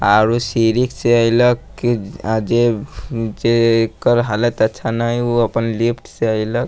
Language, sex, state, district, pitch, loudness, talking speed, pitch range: Maithili, male, Bihar, Sitamarhi, 115 Hz, -17 LUFS, 145 wpm, 110-120 Hz